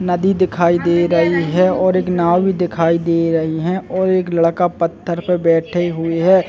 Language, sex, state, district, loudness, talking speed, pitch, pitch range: Hindi, male, Chhattisgarh, Bilaspur, -16 LUFS, 205 wpm, 175 Hz, 170-185 Hz